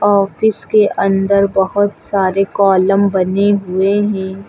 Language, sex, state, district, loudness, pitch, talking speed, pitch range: Hindi, female, Uttar Pradesh, Lucknow, -14 LUFS, 195 Hz, 120 wpm, 190-205 Hz